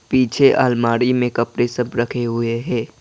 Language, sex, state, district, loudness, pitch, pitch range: Hindi, male, Assam, Kamrup Metropolitan, -18 LUFS, 120 Hz, 115-125 Hz